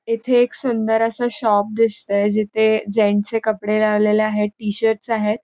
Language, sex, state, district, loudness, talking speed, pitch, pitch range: Marathi, female, Maharashtra, Pune, -19 LUFS, 145 wpm, 220 Hz, 210-225 Hz